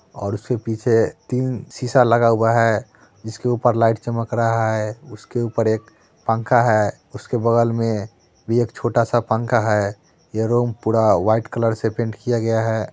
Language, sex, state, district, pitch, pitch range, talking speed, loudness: Hindi, male, Bihar, Muzaffarpur, 115 Hz, 110-120 Hz, 190 wpm, -20 LUFS